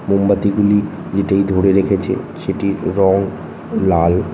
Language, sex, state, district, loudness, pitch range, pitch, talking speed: Bengali, male, West Bengal, North 24 Parganas, -16 LUFS, 95-100 Hz, 100 Hz, 110 wpm